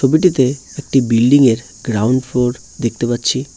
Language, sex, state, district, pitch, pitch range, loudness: Bengali, male, West Bengal, Cooch Behar, 125 Hz, 120-135 Hz, -15 LUFS